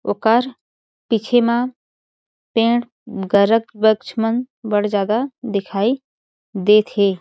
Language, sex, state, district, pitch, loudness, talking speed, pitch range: Chhattisgarhi, female, Chhattisgarh, Jashpur, 225 Hz, -18 LUFS, 110 wpm, 205-240 Hz